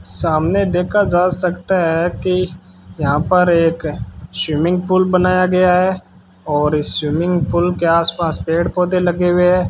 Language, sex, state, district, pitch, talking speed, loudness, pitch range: Hindi, male, Rajasthan, Bikaner, 175 Hz, 160 wpm, -15 LUFS, 155-180 Hz